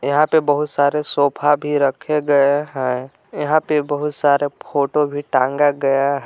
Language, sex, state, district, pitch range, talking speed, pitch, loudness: Hindi, male, Jharkhand, Palamu, 140-150 Hz, 175 wpm, 145 Hz, -18 LUFS